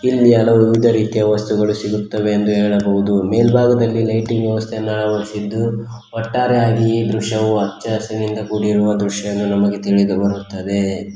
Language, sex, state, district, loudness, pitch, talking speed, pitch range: Kannada, male, Karnataka, Koppal, -16 LUFS, 105 Hz, 115 wpm, 105-115 Hz